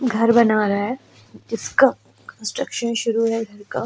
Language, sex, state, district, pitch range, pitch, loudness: Hindi, female, Goa, North and South Goa, 215-235 Hz, 230 Hz, -20 LUFS